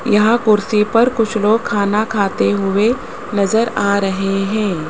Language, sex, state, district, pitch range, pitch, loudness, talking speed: Hindi, male, Rajasthan, Jaipur, 200-225 Hz, 210 Hz, -16 LUFS, 145 wpm